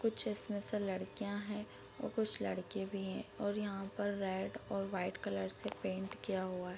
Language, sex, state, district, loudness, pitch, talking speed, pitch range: Hindi, female, Bihar, Darbhanga, -38 LUFS, 200 Hz, 195 wpm, 190-210 Hz